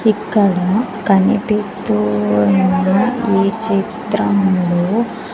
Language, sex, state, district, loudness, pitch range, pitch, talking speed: Telugu, female, Andhra Pradesh, Sri Satya Sai, -15 LUFS, 190-215 Hz, 200 Hz, 45 wpm